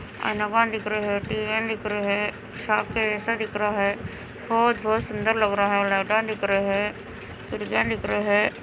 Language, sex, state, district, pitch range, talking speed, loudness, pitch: Hindi, female, Andhra Pradesh, Anantapur, 205-220 Hz, 180 wpm, -24 LUFS, 210 Hz